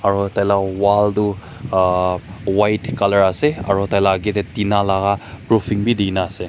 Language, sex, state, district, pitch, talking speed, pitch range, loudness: Nagamese, male, Nagaland, Kohima, 100 Hz, 205 wpm, 95-105 Hz, -18 LUFS